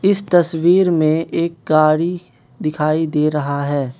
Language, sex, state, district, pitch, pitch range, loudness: Hindi, male, Manipur, Imphal West, 155 Hz, 150-170 Hz, -17 LUFS